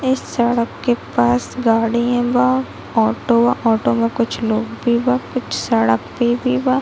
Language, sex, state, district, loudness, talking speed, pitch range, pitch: Hindi, female, Chhattisgarh, Bilaspur, -17 LUFS, 165 wpm, 225-255 Hz, 235 Hz